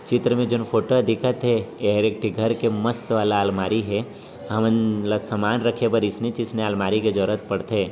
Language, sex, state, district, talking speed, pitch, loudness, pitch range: Chhattisgarhi, male, Chhattisgarh, Raigarh, 195 wpm, 110 Hz, -22 LUFS, 105-115 Hz